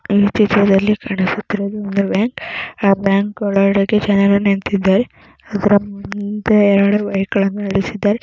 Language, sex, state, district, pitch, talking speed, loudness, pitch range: Kannada, female, Karnataka, Mysore, 205 Hz, 45 wpm, -16 LUFS, 200-210 Hz